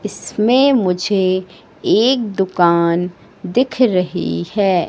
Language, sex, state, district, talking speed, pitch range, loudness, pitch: Hindi, female, Madhya Pradesh, Katni, 85 wpm, 180-225 Hz, -16 LUFS, 190 Hz